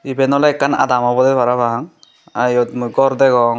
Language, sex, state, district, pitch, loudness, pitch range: Chakma, male, Tripura, Dhalai, 125 Hz, -15 LUFS, 120-135 Hz